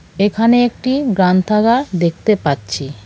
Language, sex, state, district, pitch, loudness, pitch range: Bengali, female, West Bengal, Cooch Behar, 205 Hz, -15 LUFS, 170-235 Hz